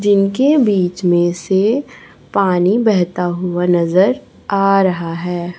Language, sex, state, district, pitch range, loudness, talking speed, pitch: Hindi, female, Chhattisgarh, Raipur, 175-200 Hz, -15 LUFS, 120 wpm, 185 Hz